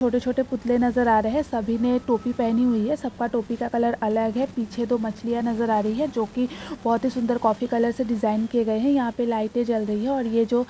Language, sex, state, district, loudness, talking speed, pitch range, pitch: Hindi, female, Uttar Pradesh, Jalaun, -24 LUFS, 265 wpm, 225-245 Hz, 235 Hz